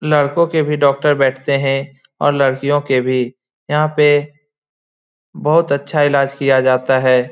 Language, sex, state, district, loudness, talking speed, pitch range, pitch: Hindi, male, Bihar, Lakhisarai, -15 LUFS, 145 wpm, 130-145 Hz, 140 Hz